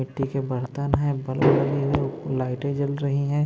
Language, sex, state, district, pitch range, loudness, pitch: Hindi, male, Maharashtra, Mumbai Suburban, 135-140 Hz, -24 LUFS, 140 Hz